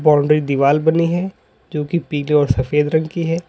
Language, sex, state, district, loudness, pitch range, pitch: Hindi, male, Uttar Pradesh, Lalitpur, -17 LUFS, 145-165 Hz, 150 Hz